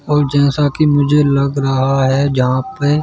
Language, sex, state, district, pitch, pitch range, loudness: Hindi, male, Madhya Pradesh, Bhopal, 140 Hz, 135-145 Hz, -14 LUFS